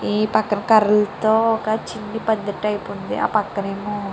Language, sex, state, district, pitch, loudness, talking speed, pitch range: Telugu, female, Andhra Pradesh, Chittoor, 210 Hz, -20 LUFS, 160 wpm, 205-220 Hz